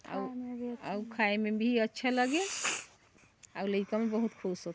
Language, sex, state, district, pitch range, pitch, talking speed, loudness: Hindi, female, Chhattisgarh, Sarguja, 210-245 Hz, 225 Hz, 165 wpm, -33 LUFS